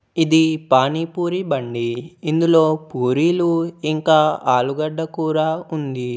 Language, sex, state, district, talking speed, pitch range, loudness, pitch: Telugu, male, Telangana, Komaram Bheem, 85 wpm, 135-165 Hz, -19 LUFS, 155 Hz